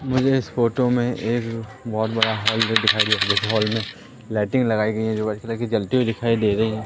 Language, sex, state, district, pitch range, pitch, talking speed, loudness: Hindi, male, Madhya Pradesh, Katni, 110-120 Hz, 110 Hz, 245 wpm, -21 LUFS